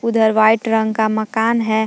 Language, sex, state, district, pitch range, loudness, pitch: Hindi, female, Jharkhand, Palamu, 220-225 Hz, -16 LUFS, 220 Hz